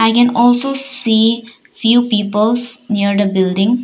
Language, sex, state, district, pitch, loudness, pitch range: English, female, Arunachal Pradesh, Papum Pare, 230 Hz, -14 LUFS, 210-245 Hz